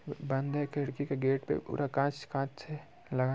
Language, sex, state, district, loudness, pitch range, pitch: Hindi, male, Bihar, Muzaffarpur, -34 LUFS, 135-145 Hz, 140 Hz